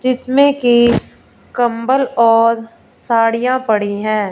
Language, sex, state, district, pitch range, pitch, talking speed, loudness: Hindi, female, Punjab, Fazilka, 225-255 Hz, 235 Hz, 95 wpm, -14 LUFS